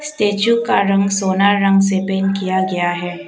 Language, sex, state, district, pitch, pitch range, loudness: Hindi, female, Arunachal Pradesh, Papum Pare, 195 Hz, 190-205 Hz, -16 LUFS